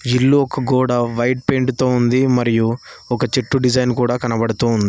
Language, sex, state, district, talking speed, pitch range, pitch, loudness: Telugu, male, Telangana, Mahabubabad, 170 wpm, 120-130 Hz, 125 Hz, -17 LUFS